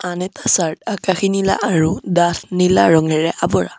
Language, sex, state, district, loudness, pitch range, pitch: Assamese, male, Assam, Sonitpur, -16 LUFS, 165-195 Hz, 180 Hz